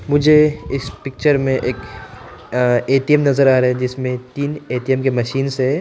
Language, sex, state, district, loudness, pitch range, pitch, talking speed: Hindi, male, Arunachal Pradesh, Papum Pare, -17 LUFS, 125-140 Hz, 130 Hz, 165 wpm